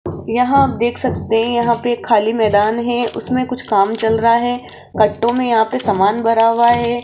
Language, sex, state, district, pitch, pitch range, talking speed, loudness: Hindi, female, Rajasthan, Jaipur, 235 Hz, 225-240 Hz, 195 wpm, -15 LUFS